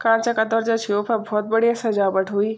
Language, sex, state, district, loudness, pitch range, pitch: Garhwali, female, Uttarakhand, Tehri Garhwal, -21 LUFS, 205-225 Hz, 220 Hz